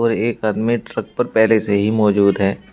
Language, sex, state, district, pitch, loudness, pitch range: Hindi, male, Uttar Pradesh, Shamli, 110 Hz, -17 LUFS, 100-110 Hz